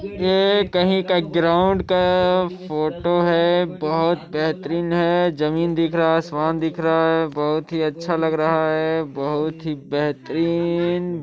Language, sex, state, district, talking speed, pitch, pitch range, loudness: Hindi, male, Chhattisgarh, Sarguja, 135 wpm, 165 Hz, 160-175 Hz, -20 LUFS